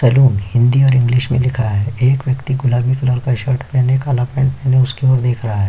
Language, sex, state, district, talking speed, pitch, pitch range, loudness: Hindi, male, Chhattisgarh, Kabirdham, 230 wpm, 130 Hz, 125-130 Hz, -15 LUFS